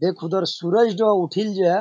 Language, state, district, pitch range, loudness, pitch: Surjapuri, Bihar, Kishanganj, 175-210 Hz, -20 LUFS, 190 Hz